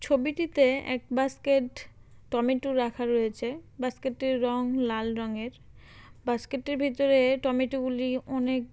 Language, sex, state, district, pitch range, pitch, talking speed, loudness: Bengali, female, West Bengal, Malda, 245-270 Hz, 255 Hz, 115 wpm, -28 LUFS